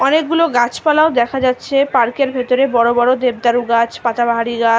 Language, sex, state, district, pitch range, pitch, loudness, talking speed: Bengali, female, West Bengal, Malda, 235-275 Hz, 250 Hz, -15 LUFS, 175 wpm